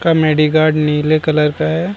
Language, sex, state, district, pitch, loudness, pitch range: Hindi, male, Bihar, Vaishali, 155 Hz, -14 LUFS, 155-160 Hz